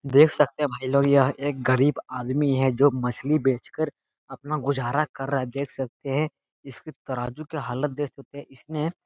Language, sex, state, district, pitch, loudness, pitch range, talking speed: Hindi, male, Bihar, Jahanabad, 140 Hz, -25 LUFS, 130-150 Hz, 200 wpm